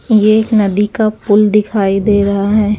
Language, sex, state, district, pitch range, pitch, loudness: Hindi, female, Haryana, Charkhi Dadri, 200-215 Hz, 210 Hz, -12 LUFS